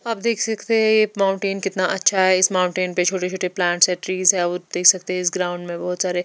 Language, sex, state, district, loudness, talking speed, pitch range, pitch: Hindi, female, Bihar, West Champaran, -19 LUFS, 250 wpm, 180-195 Hz, 185 Hz